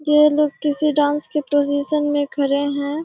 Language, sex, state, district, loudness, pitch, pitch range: Hindi, female, Bihar, Kishanganj, -19 LUFS, 290 Hz, 285-300 Hz